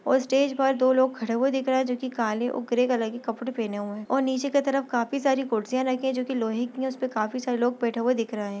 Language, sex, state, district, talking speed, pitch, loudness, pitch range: Hindi, female, Chhattisgarh, Bastar, 305 wpm, 255 Hz, -26 LUFS, 230-260 Hz